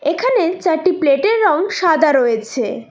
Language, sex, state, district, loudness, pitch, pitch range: Bengali, female, West Bengal, Cooch Behar, -15 LUFS, 330 Hz, 275-385 Hz